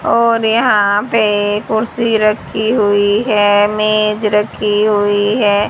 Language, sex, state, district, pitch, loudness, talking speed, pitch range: Hindi, female, Haryana, Charkhi Dadri, 210 Hz, -13 LUFS, 115 wpm, 205-220 Hz